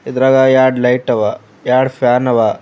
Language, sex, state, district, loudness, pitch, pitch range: Kannada, male, Karnataka, Bidar, -13 LUFS, 130 Hz, 125-130 Hz